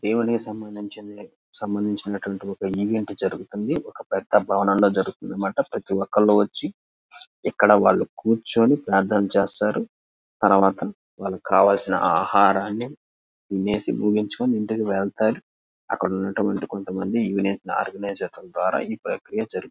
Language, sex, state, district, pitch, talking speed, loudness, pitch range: Telugu, male, Andhra Pradesh, Krishna, 100 Hz, 90 wpm, -23 LUFS, 95-105 Hz